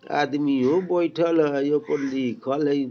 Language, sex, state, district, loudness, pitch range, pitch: Bajjika, male, Bihar, Vaishali, -23 LUFS, 135-155 Hz, 145 Hz